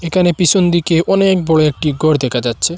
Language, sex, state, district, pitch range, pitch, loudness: Bengali, male, Assam, Hailakandi, 155-180 Hz, 165 Hz, -13 LUFS